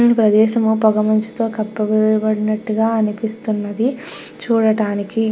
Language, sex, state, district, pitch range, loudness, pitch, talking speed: Telugu, female, Andhra Pradesh, Krishna, 215-225 Hz, -17 LUFS, 215 Hz, 80 wpm